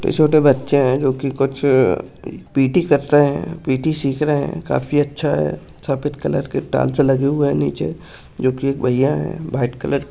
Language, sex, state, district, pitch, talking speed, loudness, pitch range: Hindi, male, Maharashtra, Dhule, 140 Hz, 195 wpm, -18 LUFS, 130-145 Hz